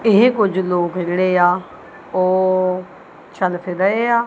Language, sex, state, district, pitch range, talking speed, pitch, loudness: Punjabi, female, Punjab, Kapurthala, 180-200 Hz, 100 wpm, 185 Hz, -17 LUFS